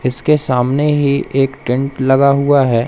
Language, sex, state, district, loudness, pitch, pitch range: Hindi, male, Madhya Pradesh, Umaria, -14 LUFS, 135 Hz, 125-140 Hz